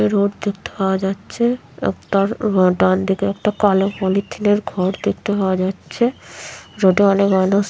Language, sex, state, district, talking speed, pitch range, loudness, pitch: Bengali, female, West Bengal, Jhargram, 165 wpm, 190-205 Hz, -18 LUFS, 195 Hz